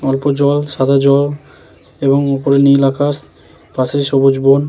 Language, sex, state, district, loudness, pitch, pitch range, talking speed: Bengali, male, West Bengal, Jalpaiguri, -13 LUFS, 140 Hz, 135-140 Hz, 140 wpm